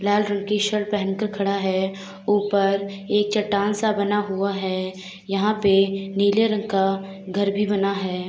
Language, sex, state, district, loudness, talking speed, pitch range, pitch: Hindi, female, Uttar Pradesh, Hamirpur, -22 LUFS, 175 wpm, 195-205 Hz, 200 Hz